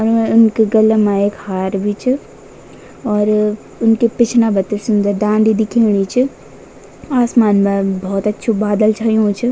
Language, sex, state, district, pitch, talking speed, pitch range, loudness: Garhwali, female, Uttarakhand, Tehri Garhwal, 215 Hz, 140 wpm, 205-225 Hz, -15 LUFS